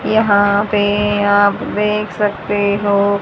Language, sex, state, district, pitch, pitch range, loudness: Hindi, female, Haryana, Rohtak, 205 Hz, 205-210 Hz, -15 LUFS